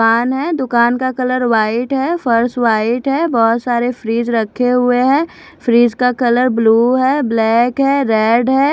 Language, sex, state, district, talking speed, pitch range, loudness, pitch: Hindi, female, Odisha, Khordha, 170 wpm, 230-260 Hz, -14 LUFS, 245 Hz